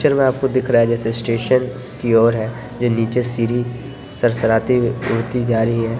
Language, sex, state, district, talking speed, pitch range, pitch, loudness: Hindi, male, Bihar, Sitamarhi, 200 wpm, 115-125 Hz, 120 Hz, -18 LUFS